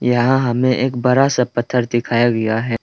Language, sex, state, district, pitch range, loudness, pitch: Hindi, male, Arunachal Pradesh, Lower Dibang Valley, 120-125 Hz, -16 LUFS, 120 Hz